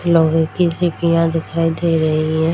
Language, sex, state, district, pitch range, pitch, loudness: Hindi, female, Bihar, Darbhanga, 160-170 Hz, 165 Hz, -17 LUFS